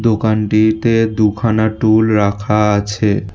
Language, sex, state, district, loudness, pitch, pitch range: Bengali, male, West Bengal, Alipurduar, -14 LUFS, 110 Hz, 105-110 Hz